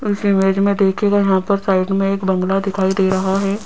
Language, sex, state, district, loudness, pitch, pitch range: Hindi, female, Rajasthan, Jaipur, -16 LUFS, 195 Hz, 190-200 Hz